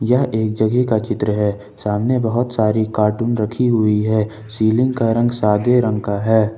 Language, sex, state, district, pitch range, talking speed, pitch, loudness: Hindi, male, Jharkhand, Ranchi, 105-120 Hz, 190 wpm, 110 Hz, -18 LUFS